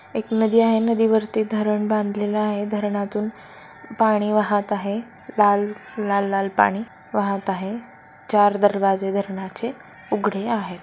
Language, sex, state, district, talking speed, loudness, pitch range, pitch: Marathi, female, Maharashtra, Solapur, 120 wpm, -22 LUFS, 200-220 Hz, 205 Hz